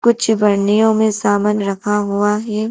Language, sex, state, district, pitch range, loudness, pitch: Hindi, female, Madhya Pradesh, Dhar, 205-220 Hz, -15 LUFS, 210 Hz